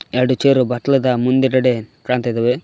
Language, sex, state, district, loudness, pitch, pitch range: Kannada, male, Karnataka, Koppal, -16 LUFS, 125 Hz, 125-130 Hz